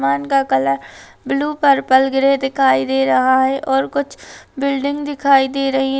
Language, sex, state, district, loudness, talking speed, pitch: Hindi, female, Chhattisgarh, Kabirdham, -16 LUFS, 170 wpm, 270 Hz